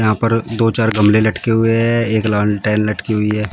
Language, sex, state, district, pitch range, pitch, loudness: Hindi, male, Uttar Pradesh, Shamli, 105-115 Hz, 110 Hz, -15 LUFS